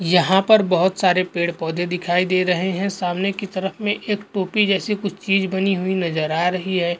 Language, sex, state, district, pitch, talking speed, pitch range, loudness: Hindi, male, Goa, North and South Goa, 185 Hz, 215 wpm, 180-195 Hz, -20 LUFS